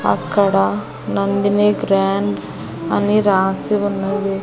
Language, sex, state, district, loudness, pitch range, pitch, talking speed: Telugu, female, Andhra Pradesh, Annamaya, -17 LUFS, 190-205 Hz, 195 Hz, 80 wpm